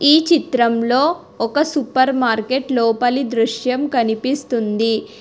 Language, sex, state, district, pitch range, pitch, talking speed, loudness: Telugu, female, Telangana, Hyderabad, 230-280 Hz, 255 Hz, 90 wpm, -17 LUFS